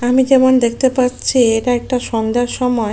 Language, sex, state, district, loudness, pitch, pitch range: Bengali, female, West Bengal, Jalpaiguri, -15 LUFS, 245 Hz, 235-255 Hz